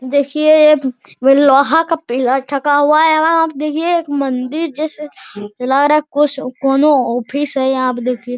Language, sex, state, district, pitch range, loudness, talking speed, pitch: Hindi, male, Bihar, Araria, 260-305 Hz, -14 LUFS, 185 wpm, 285 Hz